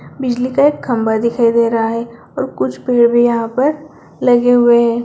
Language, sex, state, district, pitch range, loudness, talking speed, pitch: Hindi, female, Bihar, Bhagalpur, 230-250 Hz, -14 LUFS, 200 wpm, 240 Hz